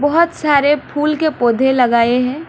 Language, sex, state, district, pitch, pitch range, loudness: Hindi, female, West Bengal, Alipurduar, 290 Hz, 250-305 Hz, -14 LUFS